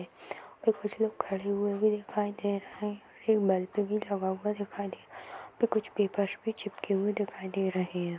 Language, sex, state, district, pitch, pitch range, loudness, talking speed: Kumaoni, female, Uttarakhand, Uttarkashi, 205 Hz, 195-210 Hz, -32 LUFS, 220 wpm